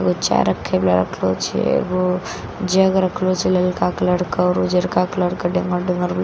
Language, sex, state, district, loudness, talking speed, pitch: Maithili, female, Bihar, Katihar, -19 LUFS, 190 wpm, 180 Hz